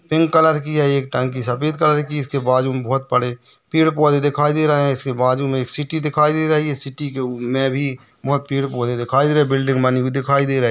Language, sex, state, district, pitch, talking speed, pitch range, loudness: Hindi, male, Maharashtra, Nagpur, 140 Hz, 250 wpm, 130-150 Hz, -18 LUFS